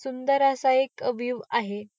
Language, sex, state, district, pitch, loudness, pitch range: Marathi, female, Maharashtra, Pune, 255 Hz, -25 LUFS, 235-270 Hz